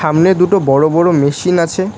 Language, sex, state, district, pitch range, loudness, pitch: Bengali, male, West Bengal, Cooch Behar, 155-185 Hz, -12 LUFS, 175 Hz